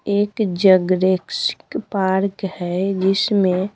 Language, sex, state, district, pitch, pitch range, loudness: Hindi, female, Bihar, Patna, 190 Hz, 185-200 Hz, -19 LUFS